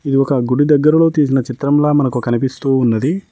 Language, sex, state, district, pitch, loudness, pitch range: Telugu, male, Telangana, Mahabubabad, 135 Hz, -14 LUFS, 130-150 Hz